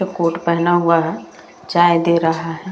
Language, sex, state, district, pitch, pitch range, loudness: Hindi, female, Bihar, Vaishali, 170 Hz, 165-175 Hz, -16 LUFS